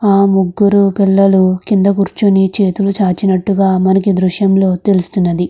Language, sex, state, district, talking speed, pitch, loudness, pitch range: Telugu, female, Andhra Pradesh, Krishna, 110 wpm, 195 Hz, -12 LUFS, 185-200 Hz